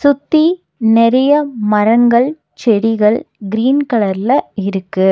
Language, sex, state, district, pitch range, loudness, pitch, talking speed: Tamil, female, Tamil Nadu, Nilgiris, 210-275 Hz, -13 LUFS, 230 Hz, 80 wpm